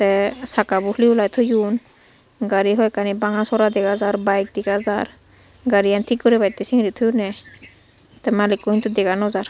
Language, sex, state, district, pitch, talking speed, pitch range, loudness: Chakma, female, Tripura, Unakoti, 205 Hz, 175 wpm, 200-220 Hz, -19 LUFS